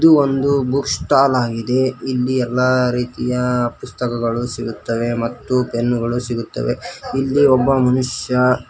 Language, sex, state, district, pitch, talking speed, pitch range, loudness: Kannada, male, Karnataka, Koppal, 125 Hz, 110 wpm, 120-130 Hz, -18 LUFS